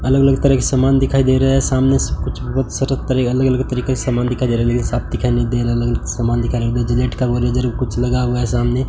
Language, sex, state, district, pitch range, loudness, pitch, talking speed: Hindi, male, Rajasthan, Bikaner, 120-130 Hz, -17 LUFS, 125 Hz, 270 wpm